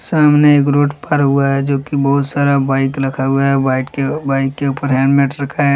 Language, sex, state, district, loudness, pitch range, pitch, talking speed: Hindi, male, Jharkhand, Deoghar, -14 LUFS, 135-145 Hz, 140 Hz, 230 wpm